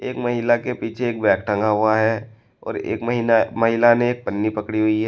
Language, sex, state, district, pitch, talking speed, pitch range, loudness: Hindi, male, Uttar Pradesh, Shamli, 115 Hz, 210 wpm, 110-120 Hz, -20 LUFS